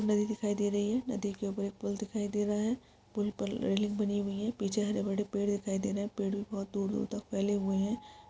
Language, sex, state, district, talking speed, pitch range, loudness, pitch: Hindi, female, Chhattisgarh, Sukma, 265 wpm, 200-210 Hz, -34 LUFS, 205 Hz